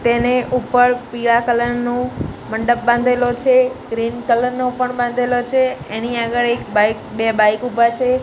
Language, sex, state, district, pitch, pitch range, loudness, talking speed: Gujarati, female, Gujarat, Gandhinagar, 240 Hz, 235-250 Hz, -17 LUFS, 160 wpm